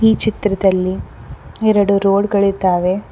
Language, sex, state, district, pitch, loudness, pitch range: Kannada, female, Karnataka, Koppal, 200 Hz, -15 LUFS, 190-210 Hz